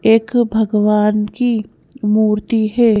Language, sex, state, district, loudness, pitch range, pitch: Hindi, female, Madhya Pradesh, Bhopal, -15 LUFS, 210-230 Hz, 220 Hz